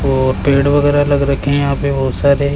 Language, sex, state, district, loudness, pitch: Hindi, male, Rajasthan, Jaipur, -14 LUFS, 140 Hz